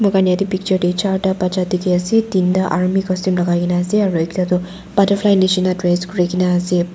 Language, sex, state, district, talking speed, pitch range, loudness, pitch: Nagamese, female, Nagaland, Dimapur, 205 wpm, 180-190 Hz, -17 LUFS, 185 Hz